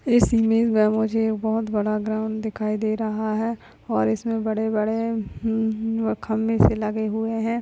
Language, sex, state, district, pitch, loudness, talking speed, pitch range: Hindi, female, Goa, North and South Goa, 220 Hz, -23 LUFS, 155 wpm, 215-225 Hz